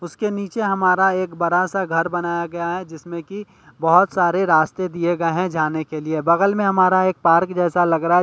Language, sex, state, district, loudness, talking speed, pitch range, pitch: Hindi, male, Delhi, New Delhi, -19 LUFS, 220 wpm, 165-185 Hz, 175 Hz